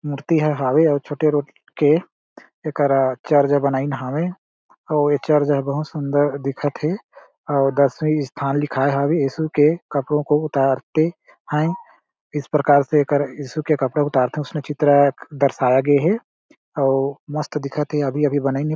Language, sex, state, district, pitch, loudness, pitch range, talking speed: Chhattisgarhi, male, Chhattisgarh, Jashpur, 145 Hz, -20 LUFS, 140-150 Hz, 165 wpm